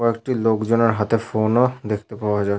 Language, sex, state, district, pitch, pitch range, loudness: Bengali, male, West Bengal, Jhargram, 110 Hz, 105-115 Hz, -20 LUFS